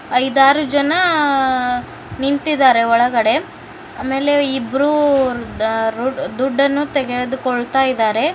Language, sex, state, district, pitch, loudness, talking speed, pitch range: Kannada, male, Karnataka, Bijapur, 265 Hz, -16 LUFS, 55 wpm, 250-285 Hz